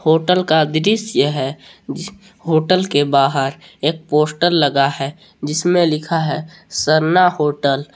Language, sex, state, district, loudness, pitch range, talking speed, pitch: Hindi, male, Jharkhand, Palamu, -16 LUFS, 145-175 Hz, 130 wpm, 155 Hz